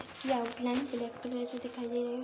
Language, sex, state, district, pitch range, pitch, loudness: Hindi, female, Bihar, Araria, 240-250 Hz, 245 Hz, -35 LUFS